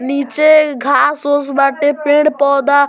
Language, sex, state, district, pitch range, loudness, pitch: Bhojpuri, male, Bihar, Muzaffarpur, 280-300 Hz, -12 LUFS, 285 Hz